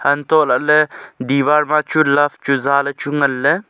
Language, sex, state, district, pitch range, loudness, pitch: Wancho, male, Arunachal Pradesh, Longding, 140-150 Hz, -15 LUFS, 145 Hz